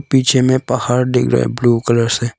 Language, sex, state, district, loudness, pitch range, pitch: Hindi, male, Arunachal Pradesh, Longding, -15 LUFS, 120-130 Hz, 125 Hz